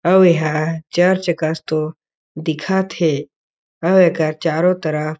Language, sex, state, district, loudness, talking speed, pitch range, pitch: Chhattisgarhi, male, Chhattisgarh, Jashpur, -17 LUFS, 140 wpm, 155-175 Hz, 165 Hz